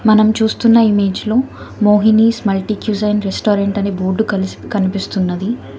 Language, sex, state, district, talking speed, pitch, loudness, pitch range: Telugu, female, Telangana, Hyderabad, 135 wpm, 210 Hz, -15 LUFS, 195-220 Hz